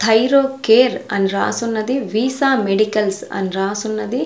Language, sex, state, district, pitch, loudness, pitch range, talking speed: Telugu, female, Andhra Pradesh, Sri Satya Sai, 220 Hz, -17 LUFS, 205-255 Hz, 110 wpm